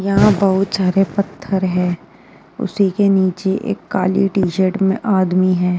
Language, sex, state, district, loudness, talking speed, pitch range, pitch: Hindi, female, Uttar Pradesh, Jyotiba Phule Nagar, -17 LUFS, 145 wpm, 185-200 Hz, 190 Hz